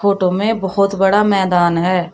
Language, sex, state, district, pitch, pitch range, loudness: Hindi, female, Uttar Pradesh, Shamli, 195 Hz, 180-200 Hz, -15 LUFS